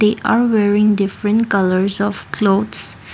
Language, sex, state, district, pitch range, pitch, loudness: English, female, Assam, Kamrup Metropolitan, 195-210 Hz, 205 Hz, -15 LUFS